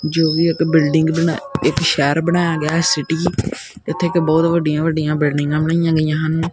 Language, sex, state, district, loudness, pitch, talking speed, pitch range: Punjabi, male, Punjab, Kapurthala, -17 LUFS, 160 Hz, 175 wpm, 155-165 Hz